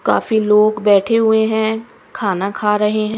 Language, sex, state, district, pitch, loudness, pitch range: Hindi, female, Haryana, Rohtak, 215 Hz, -15 LUFS, 210-220 Hz